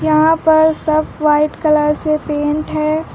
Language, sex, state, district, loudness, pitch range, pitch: Hindi, female, Uttar Pradesh, Lucknow, -14 LUFS, 300-315 Hz, 310 Hz